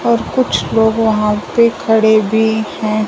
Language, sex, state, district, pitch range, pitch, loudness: Hindi, male, Punjab, Fazilka, 215-225 Hz, 220 Hz, -14 LUFS